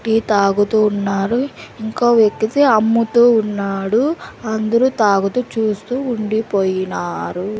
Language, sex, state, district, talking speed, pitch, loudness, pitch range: Telugu, female, Andhra Pradesh, Sri Satya Sai, 85 wpm, 220 Hz, -17 LUFS, 200-235 Hz